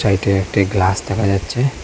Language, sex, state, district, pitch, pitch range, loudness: Bengali, male, Assam, Hailakandi, 100 Hz, 95-100 Hz, -17 LUFS